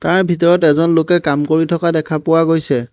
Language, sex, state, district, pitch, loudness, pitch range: Assamese, male, Assam, Hailakandi, 165 Hz, -14 LUFS, 155-170 Hz